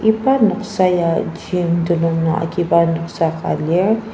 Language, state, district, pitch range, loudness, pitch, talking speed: Ao, Nagaland, Dimapur, 165-210 Hz, -17 LUFS, 170 Hz, 145 wpm